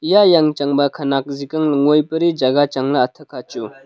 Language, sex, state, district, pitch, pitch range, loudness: Wancho, male, Arunachal Pradesh, Longding, 145 Hz, 140-155 Hz, -16 LUFS